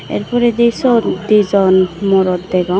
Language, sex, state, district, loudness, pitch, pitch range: Chakma, female, Tripura, Dhalai, -13 LUFS, 200 Hz, 185-235 Hz